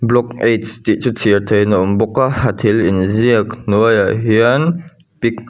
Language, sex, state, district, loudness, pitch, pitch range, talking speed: Mizo, male, Mizoram, Aizawl, -14 LUFS, 115 Hz, 105-120 Hz, 165 wpm